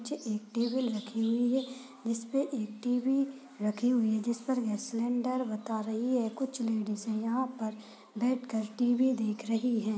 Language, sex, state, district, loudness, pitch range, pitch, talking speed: Hindi, female, Uttar Pradesh, Budaun, -32 LUFS, 220-255 Hz, 235 Hz, 175 wpm